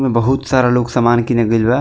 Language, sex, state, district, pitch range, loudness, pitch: Bhojpuri, male, Bihar, East Champaran, 115-130 Hz, -14 LUFS, 120 Hz